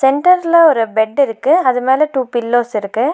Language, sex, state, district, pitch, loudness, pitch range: Tamil, female, Tamil Nadu, Nilgiris, 265 Hz, -13 LUFS, 235-305 Hz